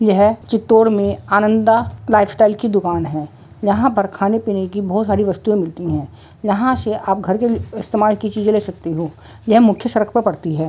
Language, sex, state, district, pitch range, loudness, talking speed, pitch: Hindi, female, Andhra Pradesh, Chittoor, 190-220 Hz, -17 LUFS, 100 wpm, 205 Hz